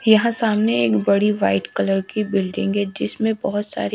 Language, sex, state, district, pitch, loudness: Hindi, female, Haryana, Charkhi Dadri, 200 Hz, -20 LUFS